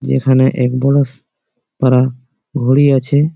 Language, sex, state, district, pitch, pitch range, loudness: Bengali, male, West Bengal, Malda, 130 Hz, 125-140 Hz, -14 LUFS